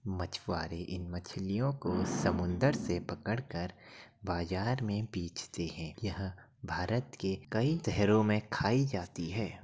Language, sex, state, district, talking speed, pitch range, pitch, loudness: Hindi, male, Uttar Pradesh, Jyotiba Phule Nagar, 130 wpm, 90-115 Hz, 100 Hz, -34 LUFS